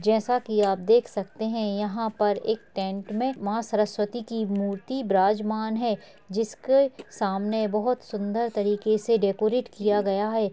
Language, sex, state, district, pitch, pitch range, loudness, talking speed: Hindi, female, Chhattisgarh, Kabirdham, 215 Hz, 205-225 Hz, -26 LUFS, 155 wpm